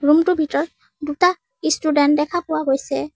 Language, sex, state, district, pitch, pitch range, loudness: Assamese, female, Assam, Sonitpur, 305 Hz, 290-320 Hz, -19 LUFS